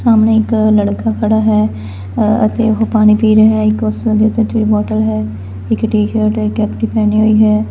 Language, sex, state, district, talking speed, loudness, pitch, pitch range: Punjabi, female, Punjab, Fazilka, 185 wpm, -13 LUFS, 215 Hz, 210-220 Hz